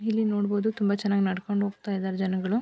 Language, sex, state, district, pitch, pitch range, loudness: Kannada, female, Karnataka, Mysore, 200 Hz, 195-210 Hz, -27 LUFS